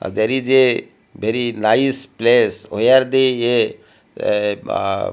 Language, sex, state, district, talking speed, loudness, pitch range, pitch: English, male, Odisha, Malkangiri, 140 wpm, -17 LUFS, 110-135 Hz, 125 Hz